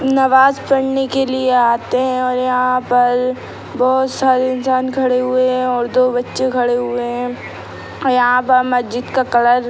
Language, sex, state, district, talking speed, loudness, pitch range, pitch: Hindi, female, Bihar, Sitamarhi, 165 wpm, -15 LUFS, 245-260 Hz, 255 Hz